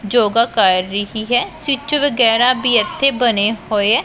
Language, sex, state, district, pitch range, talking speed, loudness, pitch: Punjabi, female, Punjab, Pathankot, 215-255 Hz, 165 wpm, -15 LUFS, 230 Hz